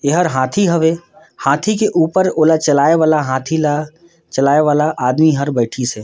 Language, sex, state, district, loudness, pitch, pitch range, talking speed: Surgujia, male, Chhattisgarh, Sarguja, -15 LUFS, 155 Hz, 140-165 Hz, 160 wpm